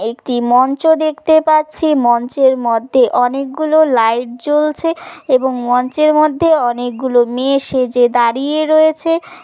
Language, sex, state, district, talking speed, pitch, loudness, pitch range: Bengali, female, West Bengal, Kolkata, 115 wpm, 265 Hz, -13 LUFS, 245-310 Hz